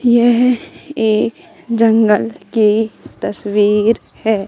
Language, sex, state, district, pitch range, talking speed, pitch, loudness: Hindi, female, Madhya Pradesh, Katni, 210-240 Hz, 80 wpm, 225 Hz, -15 LUFS